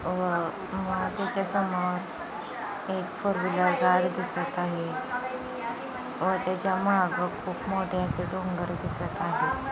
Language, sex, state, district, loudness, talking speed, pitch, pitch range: Hindi, female, Maharashtra, Sindhudurg, -29 LUFS, 110 wpm, 185 Hz, 180-190 Hz